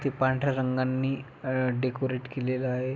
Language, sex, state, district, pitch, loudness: Marathi, male, Maharashtra, Pune, 130 Hz, -29 LUFS